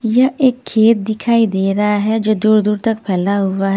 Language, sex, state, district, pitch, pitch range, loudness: Hindi, female, Punjab, Fazilka, 215 Hz, 200-225 Hz, -15 LUFS